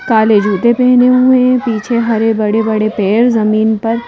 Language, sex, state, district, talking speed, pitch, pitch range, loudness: Hindi, female, Madhya Pradesh, Bhopal, 160 wpm, 225 Hz, 215-245 Hz, -11 LUFS